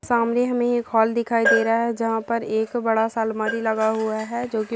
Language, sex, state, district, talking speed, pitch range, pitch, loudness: Hindi, female, Chhattisgarh, Raigarh, 225 wpm, 220-235 Hz, 225 Hz, -22 LUFS